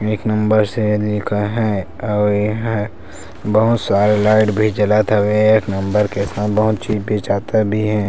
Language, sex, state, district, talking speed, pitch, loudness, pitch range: Chhattisgarhi, male, Chhattisgarh, Sarguja, 155 wpm, 105 Hz, -16 LUFS, 105-110 Hz